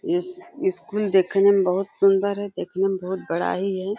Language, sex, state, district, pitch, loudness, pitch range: Hindi, female, Uttar Pradesh, Deoria, 195 Hz, -22 LUFS, 190-210 Hz